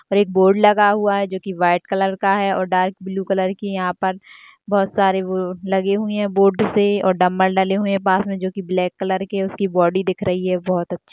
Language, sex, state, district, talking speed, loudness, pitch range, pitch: Hindi, female, Rajasthan, Nagaur, 235 wpm, -19 LUFS, 185-200 Hz, 190 Hz